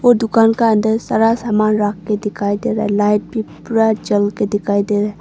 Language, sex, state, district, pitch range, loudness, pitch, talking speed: Hindi, female, Arunachal Pradesh, Longding, 205-225 Hz, -16 LUFS, 215 Hz, 240 wpm